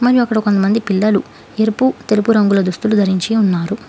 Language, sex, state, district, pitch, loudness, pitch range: Telugu, female, Telangana, Hyderabad, 210 Hz, -15 LUFS, 200-225 Hz